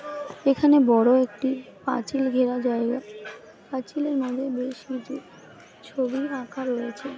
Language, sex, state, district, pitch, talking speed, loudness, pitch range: Bengali, female, West Bengal, Paschim Medinipur, 260 Hz, 115 wpm, -25 LUFS, 250-275 Hz